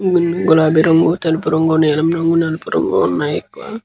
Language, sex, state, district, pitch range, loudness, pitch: Telugu, male, Andhra Pradesh, Guntur, 160-170 Hz, -15 LUFS, 165 Hz